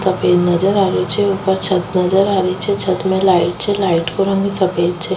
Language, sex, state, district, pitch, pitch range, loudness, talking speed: Rajasthani, female, Rajasthan, Nagaur, 190 Hz, 180-195 Hz, -15 LUFS, 230 wpm